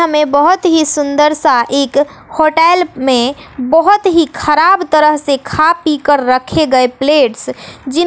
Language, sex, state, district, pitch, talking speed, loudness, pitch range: Hindi, female, Bihar, West Champaran, 300 Hz, 150 wpm, -11 LUFS, 275-325 Hz